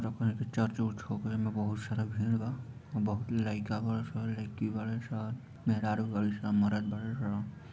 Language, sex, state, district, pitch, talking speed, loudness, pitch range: Bhojpuri, male, Bihar, Sitamarhi, 110 Hz, 215 wpm, -34 LUFS, 105-115 Hz